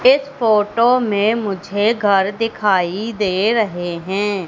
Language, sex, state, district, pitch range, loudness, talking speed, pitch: Hindi, female, Madhya Pradesh, Katni, 195-225 Hz, -17 LUFS, 120 wpm, 205 Hz